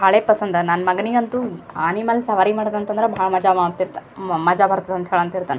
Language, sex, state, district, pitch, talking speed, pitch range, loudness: Kannada, female, Karnataka, Gulbarga, 190 Hz, 170 wpm, 180-215 Hz, -19 LUFS